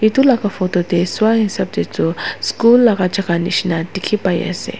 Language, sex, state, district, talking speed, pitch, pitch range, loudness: Nagamese, female, Nagaland, Dimapur, 190 wpm, 195 Hz, 175-220 Hz, -16 LUFS